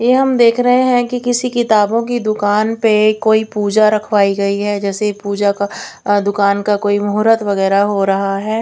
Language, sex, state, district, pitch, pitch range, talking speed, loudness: Hindi, female, Chandigarh, Chandigarh, 210 Hz, 200-225 Hz, 180 wpm, -14 LUFS